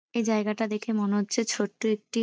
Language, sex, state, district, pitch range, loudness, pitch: Bengali, female, West Bengal, Kolkata, 210-230 Hz, -28 LUFS, 220 Hz